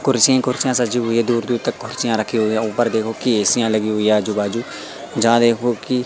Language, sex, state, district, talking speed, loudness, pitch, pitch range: Hindi, male, Madhya Pradesh, Katni, 235 wpm, -18 LUFS, 115 Hz, 110-120 Hz